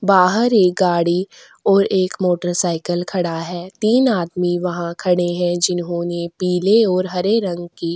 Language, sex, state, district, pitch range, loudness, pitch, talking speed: Hindi, female, Goa, North and South Goa, 175-190 Hz, -18 LUFS, 180 Hz, 150 wpm